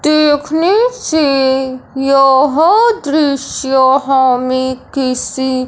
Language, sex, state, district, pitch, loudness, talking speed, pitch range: Hindi, male, Punjab, Fazilka, 275 Hz, -12 LUFS, 65 wpm, 265-305 Hz